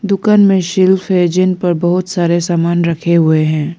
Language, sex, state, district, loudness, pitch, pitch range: Hindi, female, Arunachal Pradesh, Lower Dibang Valley, -13 LUFS, 175 Hz, 170-185 Hz